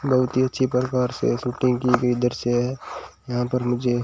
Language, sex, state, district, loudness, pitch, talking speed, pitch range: Hindi, male, Rajasthan, Bikaner, -22 LUFS, 125 Hz, 195 wpm, 120-130 Hz